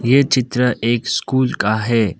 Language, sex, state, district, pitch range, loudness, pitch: Hindi, male, Assam, Kamrup Metropolitan, 110-130 Hz, -17 LUFS, 120 Hz